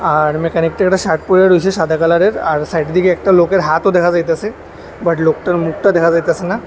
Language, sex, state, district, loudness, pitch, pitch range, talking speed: Bengali, male, Tripura, West Tripura, -13 LUFS, 170 Hz, 160-185 Hz, 195 wpm